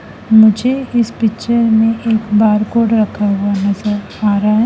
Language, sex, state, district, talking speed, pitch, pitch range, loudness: Hindi, female, Madhya Pradesh, Dhar, 155 wpm, 220 Hz, 210-230 Hz, -13 LUFS